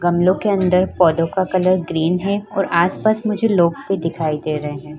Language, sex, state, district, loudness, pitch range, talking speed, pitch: Hindi, female, Uttar Pradesh, Varanasi, -18 LUFS, 165-195 Hz, 205 wpm, 180 Hz